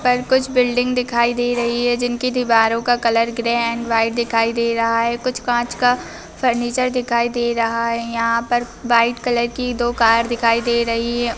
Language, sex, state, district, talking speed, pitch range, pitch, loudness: Hindi, female, Bihar, Lakhisarai, 205 wpm, 230-245 Hz, 235 Hz, -18 LUFS